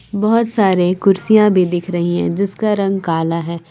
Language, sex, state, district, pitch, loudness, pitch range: Hindi, female, Jharkhand, Palamu, 185 Hz, -15 LUFS, 170-205 Hz